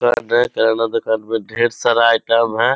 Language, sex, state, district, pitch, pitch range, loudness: Hindi, male, Bihar, Purnia, 115 Hz, 115-120 Hz, -16 LUFS